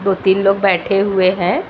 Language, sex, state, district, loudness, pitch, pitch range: Hindi, female, Uttar Pradesh, Muzaffarnagar, -15 LUFS, 195 Hz, 185-195 Hz